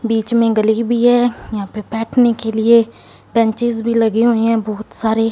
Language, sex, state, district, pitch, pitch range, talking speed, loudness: Hindi, female, Punjab, Fazilka, 225 Hz, 220-235 Hz, 190 wpm, -16 LUFS